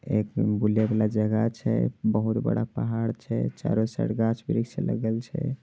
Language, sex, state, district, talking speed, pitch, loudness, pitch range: Angika, male, Bihar, Begusarai, 150 wpm, 110 Hz, -26 LUFS, 110-115 Hz